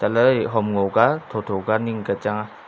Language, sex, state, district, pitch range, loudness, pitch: Wancho, male, Arunachal Pradesh, Longding, 100-110 Hz, -21 LUFS, 105 Hz